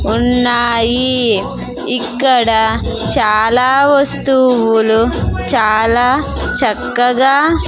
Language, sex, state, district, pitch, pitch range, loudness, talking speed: Telugu, female, Andhra Pradesh, Sri Satya Sai, 245 Hz, 225-260 Hz, -12 LUFS, 45 wpm